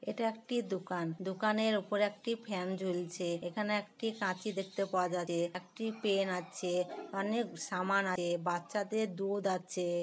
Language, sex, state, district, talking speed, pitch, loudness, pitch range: Bengali, female, West Bengal, Kolkata, 135 wpm, 190 Hz, -35 LUFS, 180-210 Hz